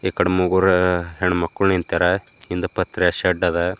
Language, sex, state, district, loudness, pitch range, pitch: Kannada, male, Karnataka, Bidar, -20 LUFS, 90-95 Hz, 90 Hz